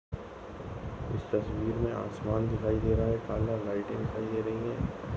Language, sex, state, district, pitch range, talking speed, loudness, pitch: Hindi, male, Goa, North and South Goa, 110-115 Hz, 165 wpm, -32 LUFS, 110 Hz